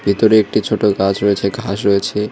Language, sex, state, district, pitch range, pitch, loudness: Bengali, male, West Bengal, Cooch Behar, 100-105 Hz, 100 Hz, -15 LUFS